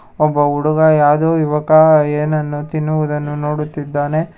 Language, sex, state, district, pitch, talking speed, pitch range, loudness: Kannada, male, Karnataka, Bangalore, 150 Hz, 95 wpm, 150-155 Hz, -15 LUFS